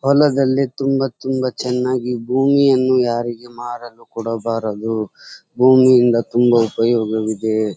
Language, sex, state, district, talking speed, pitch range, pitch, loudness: Kannada, male, Karnataka, Dharwad, 95 wpm, 115-130 Hz, 120 Hz, -17 LUFS